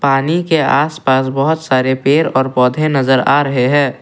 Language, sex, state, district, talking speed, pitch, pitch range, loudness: Hindi, male, Assam, Kamrup Metropolitan, 195 wpm, 135 Hz, 130-155 Hz, -13 LUFS